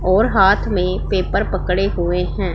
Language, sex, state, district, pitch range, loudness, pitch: Hindi, female, Punjab, Pathankot, 180-195 Hz, -17 LUFS, 185 Hz